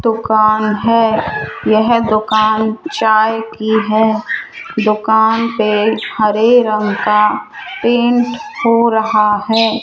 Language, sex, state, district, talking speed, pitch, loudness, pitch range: Hindi, female, Rajasthan, Jaipur, 100 wpm, 220 Hz, -13 LUFS, 215-230 Hz